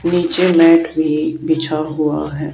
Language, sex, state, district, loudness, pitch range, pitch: Hindi, female, Haryana, Charkhi Dadri, -15 LUFS, 155-165 Hz, 160 Hz